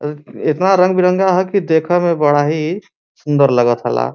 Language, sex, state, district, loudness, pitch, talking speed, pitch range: Bhojpuri, male, Uttar Pradesh, Varanasi, -14 LUFS, 160 Hz, 175 wpm, 145-185 Hz